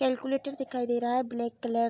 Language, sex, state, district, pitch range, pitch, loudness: Hindi, female, Bihar, Araria, 240-265 Hz, 250 Hz, -31 LUFS